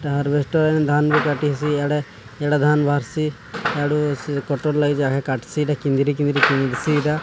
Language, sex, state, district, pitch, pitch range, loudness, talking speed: Odia, male, Odisha, Sambalpur, 145 Hz, 140-150 Hz, -20 LUFS, 100 wpm